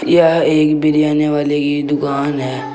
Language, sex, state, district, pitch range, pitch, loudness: Hindi, male, Uttar Pradesh, Saharanpur, 145-150 Hz, 145 Hz, -15 LUFS